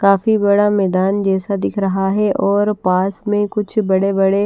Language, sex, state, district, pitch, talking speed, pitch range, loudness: Hindi, female, Haryana, Rohtak, 200 Hz, 160 wpm, 195-205 Hz, -16 LUFS